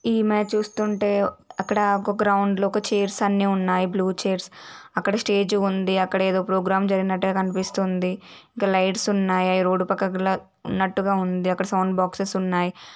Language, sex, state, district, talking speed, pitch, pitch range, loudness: Telugu, female, Andhra Pradesh, Srikakulam, 135 wpm, 190 Hz, 185-200 Hz, -23 LUFS